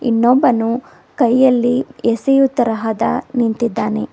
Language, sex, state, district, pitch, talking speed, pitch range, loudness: Kannada, female, Karnataka, Bidar, 240 Hz, 75 wpm, 230-255 Hz, -16 LUFS